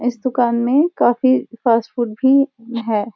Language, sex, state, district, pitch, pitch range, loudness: Hindi, female, Uttarakhand, Uttarkashi, 245 Hz, 235-260 Hz, -17 LUFS